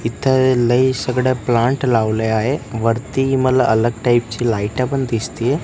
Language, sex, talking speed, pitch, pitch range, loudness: Marathi, male, 150 wpm, 120 Hz, 115-130 Hz, -17 LUFS